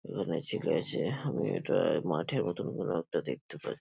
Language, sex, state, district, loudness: Bengali, male, West Bengal, Paschim Medinipur, -33 LUFS